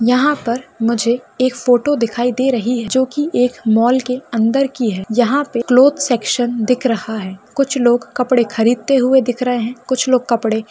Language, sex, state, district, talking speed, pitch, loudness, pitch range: Hindi, female, Maharashtra, Pune, 200 wpm, 245 Hz, -16 LUFS, 230-260 Hz